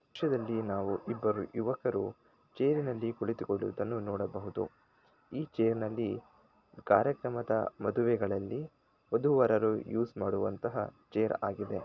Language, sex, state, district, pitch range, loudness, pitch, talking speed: Kannada, male, Karnataka, Shimoga, 100-120 Hz, -33 LUFS, 115 Hz, 110 wpm